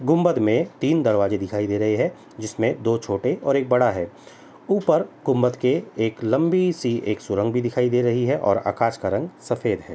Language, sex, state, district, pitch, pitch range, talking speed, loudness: Hindi, male, Uttar Pradesh, Etah, 120 Hz, 105-125 Hz, 205 wpm, -22 LUFS